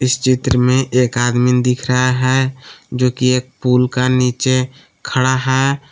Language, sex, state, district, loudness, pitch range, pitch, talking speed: Hindi, male, Jharkhand, Palamu, -15 LUFS, 125-130 Hz, 125 Hz, 160 wpm